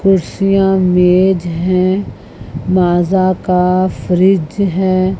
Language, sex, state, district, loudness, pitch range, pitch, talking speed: Hindi, female, Chandigarh, Chandigarh, -13 LUFS, 180-190 Hz, 185 Hz, 80 wpm